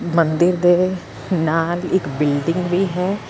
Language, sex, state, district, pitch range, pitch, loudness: Punjabi, female, Karnataka, Bangalore, 165-180 Hz, 175 Hz, -18 LUFS